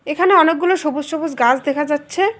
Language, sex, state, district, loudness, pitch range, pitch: Bengali, female, West Bengal, Alipurduar, -16 LUFS, 290-355 Hz, 320 Hz